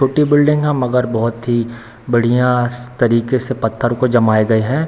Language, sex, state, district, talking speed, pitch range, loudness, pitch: Hindi, male, Bihar, Samastipur, 170 wpm, 115-130 Hz, -15 LUFS, 120 Hz